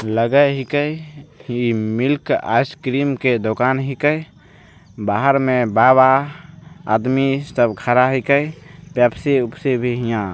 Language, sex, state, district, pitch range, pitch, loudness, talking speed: Maithili, male, Bihar, Begusarai, 120-145 Hz, 130 Hz, -17 LUFS, 120 wpm